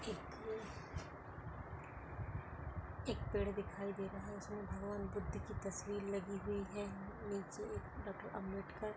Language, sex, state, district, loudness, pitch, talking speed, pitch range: Hindi, female, Maharashtra, Pune, -46 LUFS, 200 Hz, 135 wpm, 195-205 Hz